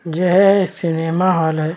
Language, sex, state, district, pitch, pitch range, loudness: Hindi, male, Chhattisgarh, Raigarh, 170 Hz, 165-185 Hz, -16 LUFS